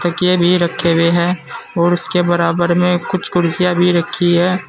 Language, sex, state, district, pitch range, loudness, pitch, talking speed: Hindi, male, Uttar Pradesh, Saharanpur, 170-180 Hz, -15 LUFS, 175 Hz, 180 wpm